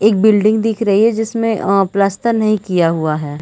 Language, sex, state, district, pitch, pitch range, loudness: Hindi, female, Chhattisgarh, Raigarh, 210 Hz, 190-220 Hz, -14 LUFS